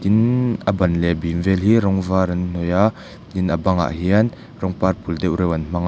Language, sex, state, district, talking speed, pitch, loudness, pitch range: Mizo, male, Mizoram, Aizawl, 235 wpm, 95 Hz, -19 LUFS, 85-100 Hz